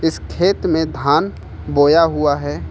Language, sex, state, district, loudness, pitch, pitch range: Hindi, male, Jharkhand, Ranchi, -16 LUFS, 150 Hz, 145-160 Hz